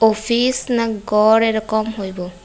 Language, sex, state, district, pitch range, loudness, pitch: Bengali, female, Tripura, West Tripura, 210-230 Hz, -17 LUFS, 220 Hz